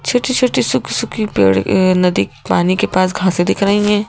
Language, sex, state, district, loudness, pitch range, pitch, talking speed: Hindi, female, Madhya Pradesh, Bhopal, -15 LUFS, 180-210 Hz, 185 Hz, 205 wpm